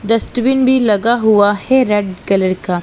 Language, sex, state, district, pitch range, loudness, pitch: Hindi, female, Punjab, Pathankot, 200-245 Hz, -13 LUFS, 210 Hz